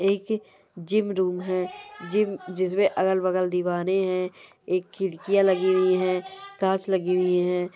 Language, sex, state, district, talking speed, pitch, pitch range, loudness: Angika, female, Bihar, Madhepura, 140 wpm, 185 Hz, 180-195 Hz, -25 LUFS